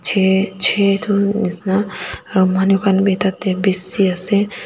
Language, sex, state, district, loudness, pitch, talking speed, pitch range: Nagamese, female, Nagaland, Dimapur, -16 LUFS, 195 Hz, 155 wpm, 190-200 Hz